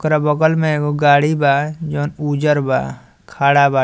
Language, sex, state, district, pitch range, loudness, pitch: Bhojpuri, male, Bihar, Muzaffarpur, 140-155 Hz, -16 LUFS, 150 Hz